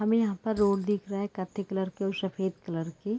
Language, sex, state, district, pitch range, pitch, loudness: Hindi, female, Chhattisgarh, Raigarh, 190-205 Hz, 200 Hz, -30 LUFS